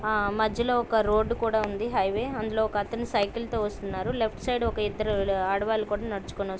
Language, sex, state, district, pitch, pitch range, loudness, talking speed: Telugu, female, Telangana, Karimnagar, 215 Hz, 205-230 Hz, -27 LUFS, 180 wpm